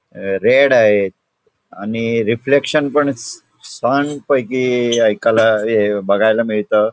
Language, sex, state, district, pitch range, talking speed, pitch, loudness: Marathi, male, Goa, North and South Goa, 105-130 Hz, 105 wpm, 115 Hz, -15 LUFS